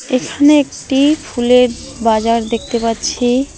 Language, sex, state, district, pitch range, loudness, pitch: Bengali, female, West Bengal, Alipurduar, 230-270 Hz, -14 LUFS, 250 Hz